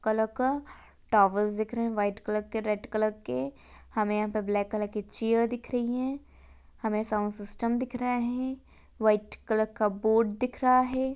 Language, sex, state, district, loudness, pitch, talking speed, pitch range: Hindi, female, Rajasthan, Churu, -29 LUFS, 220 Hz, 185 wpm, 210-245 Hz